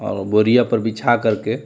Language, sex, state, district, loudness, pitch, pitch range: Hindi, male, Bihar, Jamui, -17 LUFS, 110 Hz, 105-120 Hz